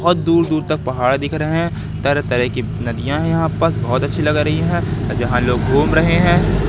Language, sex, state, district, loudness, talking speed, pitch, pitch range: Hindi, male, Madhya Pradesh, Katni, -17 LUFS, 205 wpm, 140 Hz, 125-155 Hz